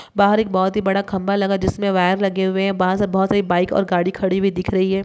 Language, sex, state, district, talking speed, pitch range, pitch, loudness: Hindi, male, Uttar Pradesh, Muzaffarnagar, 295 wpm, 190-200 Hz, 195 Hz, -19 LUFS